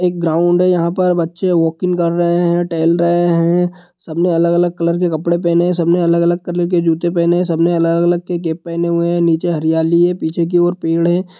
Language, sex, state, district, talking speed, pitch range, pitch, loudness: Hindi, male, Bihar, Sitamarhi, 220 wpm, 170-175 Hz, 170 Hz, -15 LUFS